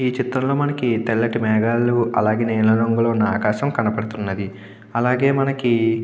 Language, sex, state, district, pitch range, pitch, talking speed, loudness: Telugu, male, Andhra Pradesh, Krishna, 110-125 Hz, 115 Hz, 130 wpm, -19 LUFS